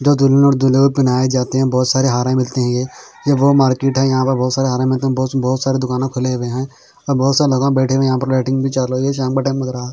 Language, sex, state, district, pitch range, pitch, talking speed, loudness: Hindi, male, Bihar, Katihar, 130-135 Hz, 130 Hz, 280 wpm, -16 LUFS